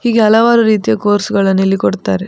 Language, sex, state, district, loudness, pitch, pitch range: Kannada, female, Karnataka, Dakshina Kannada, -12 LUFS, 215 Hz, 195-225 Hz